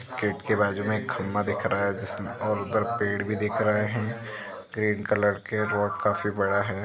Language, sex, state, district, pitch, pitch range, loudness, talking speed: Hindi, female, Chhattisgarh, Raigarh, 105 Hz, 100-110 Hz, -27 LUFS, 210 wpm